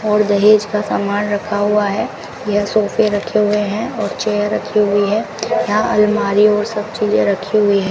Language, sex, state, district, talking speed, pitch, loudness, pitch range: Hindi, female, Rajasthan, Bikaner, 190 wpm, 210 Hz, -16 LUFS, 205-210 Hz